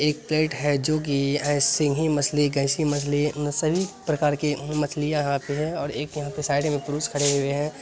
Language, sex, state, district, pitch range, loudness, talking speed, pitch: Hindi, male, Bihar, Lakhisarai, 145-150 Hz, -24 LUFS, 220 wpm, 150 Hz